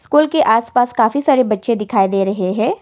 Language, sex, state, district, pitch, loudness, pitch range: Hindi, female, Assam, Kamrup Metropolitan, 230 Hz, -15 LUFS, 210-285 Hz